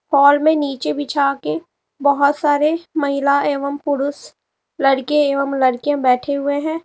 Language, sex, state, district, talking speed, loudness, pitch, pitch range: Hindi, female, Uttar Pradesh, Lalitpur, 140 wpm, -17 LUFS, 285 Hz, 275-290 Hz